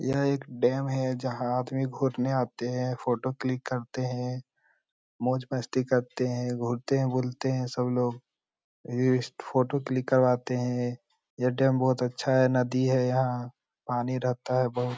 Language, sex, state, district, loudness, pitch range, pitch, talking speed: Hindi, male, Bihar, Lakhisarai, -28 LUFS, 125-130 Hz, 125 Hz, 165 wpm